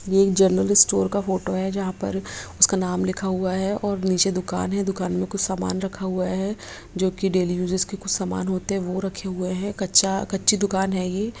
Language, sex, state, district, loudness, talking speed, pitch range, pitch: Hindi, female, Bihar, Begusarai, -22 LUFS, 225 wpm, 185-195 Hz, 190 Hz